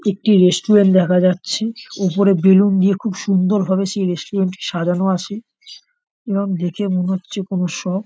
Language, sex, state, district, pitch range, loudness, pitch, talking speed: Bengali, male, West Bengal, North 24 Parganas, 185-205 Hz, -17 LUFS, 195 Hz, 150 wpm